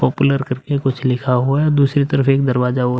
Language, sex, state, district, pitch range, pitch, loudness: Hindi, male, Uttar Pradesh, Muzaffarnagar, 125-140 Hz, 135 Hz, -16 LUFS